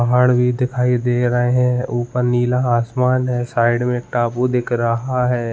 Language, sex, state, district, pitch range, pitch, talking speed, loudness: Hindi, male, Uttarakhand, Uttarkashi, 120-125 Hz, 125 Hz, 185 wpm, -18 LUFS